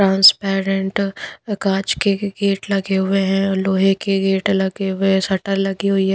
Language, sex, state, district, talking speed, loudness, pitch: Hindi, female, Punjab, Pathankot, 165 wpm, -18 LUFS, 195 Hz